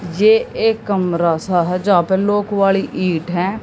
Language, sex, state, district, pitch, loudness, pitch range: Hindi, female, Haryana, Jhajjar, 190 Hz, -16 LUFS, 175-205 Hz